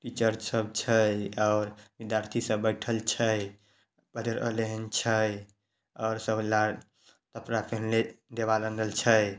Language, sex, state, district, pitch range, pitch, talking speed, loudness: Maithili, male, Bihar, Samastipur, 105-115 Hz, 110 Hz, 120 wpm, -29 LUFS